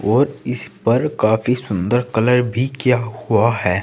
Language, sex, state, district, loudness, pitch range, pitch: Hindi, male, Uttar Pradesh, Saharanpur, -18 LUFS, 110-125 Hz, 120 Hz